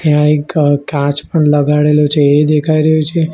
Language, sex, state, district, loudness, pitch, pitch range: Gujarati, male, Gujarat, Gandhinagar, -12 LUFS, 150 Hz, 145-155 Hz